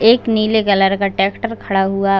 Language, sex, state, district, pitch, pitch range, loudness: Hindi, female, Chhattisgarh, Bilaspur, 200 Hz, 195-220 Hz, -16 LUFS